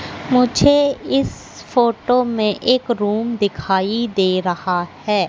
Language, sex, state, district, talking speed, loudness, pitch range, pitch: Hindi, female, Madhya Pradesh, Katni, 115 wpm, -18 LUFS, 190-250 Hz, 220 Hz